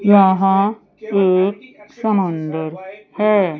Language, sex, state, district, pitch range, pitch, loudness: Hindi, female, Chandigarh, Chandigarh, 190-210 Hz, 200 Hz, -17 LUFS